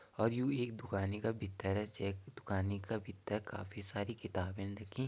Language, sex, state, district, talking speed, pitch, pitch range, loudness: Garhwali, male, Uttarakhand, Tehri Garhwal, 165 wpm, 105 Hz, 100-115 Hz, -40 LUFS